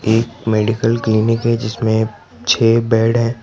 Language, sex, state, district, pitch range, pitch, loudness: Hindi, male, Madhya Pradesh, Bhopal, 110-115 Hz, 115 Hz, -16 LUFS